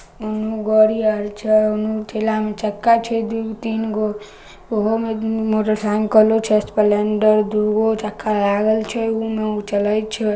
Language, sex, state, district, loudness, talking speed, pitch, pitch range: Maithili, female, Bihar, Samastipur, -19 LUFS, 155 wpm, 215 Hz, 210-220 Hz